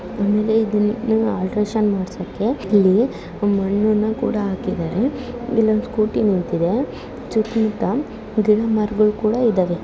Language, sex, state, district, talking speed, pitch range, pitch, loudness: Kannada, female, Karnataka, Dharwad, 90 wpm, 200-225 Hz, 215 Hz, -19 LUFS